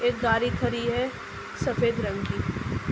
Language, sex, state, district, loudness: Hindi, female, Uttar Pradesh, Ghazipur, -27 LUFS